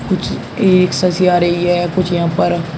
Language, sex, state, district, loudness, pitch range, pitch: Hindi, male, Uttar Pradesh, Shamli, -14 LUFS, 175-185 Hz, 175 Hz